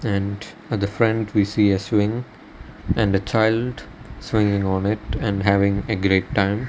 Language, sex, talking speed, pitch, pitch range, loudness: English, male, 170 wpm, 105 Hz, 100-110 Hz, -21 LUFS